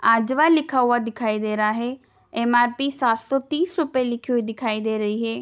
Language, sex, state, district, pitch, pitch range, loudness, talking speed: Hindi, female, Bihar, Darbhanga, 240 Hz, 225-270 Hz, -22 LUFS, 200 wpm